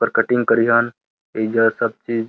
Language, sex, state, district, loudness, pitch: Bhojpuri, male, Uttar Pradesh, Deoria, -18 LUFS, 115 Hz